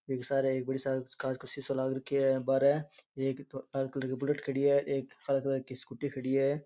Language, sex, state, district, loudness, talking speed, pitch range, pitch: Rajasthani, male, Rajasthan, Churu, -32 LUFS, 235 wpm, 130-140 Hz, 135 Hz